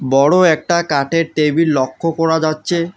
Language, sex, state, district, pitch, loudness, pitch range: Bengali, male, West Bengal, Alipurduar, 160 Hz, -15 LUFS, 150-165 Hz